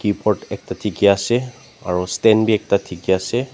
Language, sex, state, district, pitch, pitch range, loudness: Nagamese, male, Nagaland, Dimapur, 105 Hz, 95-115 Hz, -19 LUFS